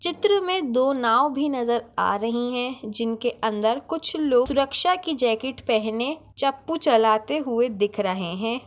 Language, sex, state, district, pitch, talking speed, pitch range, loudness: Hindi, female, Maharashtra, Pune, 245 Hz, 160 wpm, 225-295 Hz, -23 LUFS